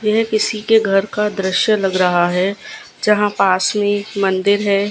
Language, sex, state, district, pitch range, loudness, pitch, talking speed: Hindi, female, Gujarat, Gandhinagar, 195-210 Hz, -16 LUFS, 205 Hz, 185 wpm